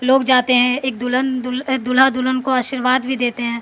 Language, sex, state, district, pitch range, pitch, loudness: Hindi, female, Bihar, Patna, 250-260 Hz, 255 Hz, -17 LUFS